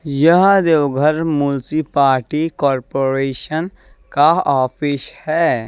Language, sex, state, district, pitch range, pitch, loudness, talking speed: Hindi, male, Jharkhand, Deoghar, 135-160 Hz, 145 Hz, -16 LUFS, 75 wpm